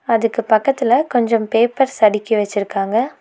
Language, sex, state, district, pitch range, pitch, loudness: Tamil, female, Tamil Nadu, Nilgiris, 215-245 Hz, 230 Hz, -16 LUFS